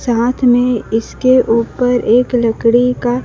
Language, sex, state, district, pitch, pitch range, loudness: Hindi, female, Madhya Pradesh, Dhar, 245 Hz, 230-250 Hz, -13 LUFS